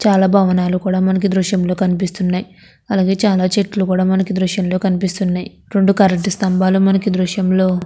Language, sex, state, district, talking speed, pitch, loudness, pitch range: Telugu, female, Andhra Pradesh, Krishna, 120 wpm, 190 Hz, -16 LUFS, 185-195 Hz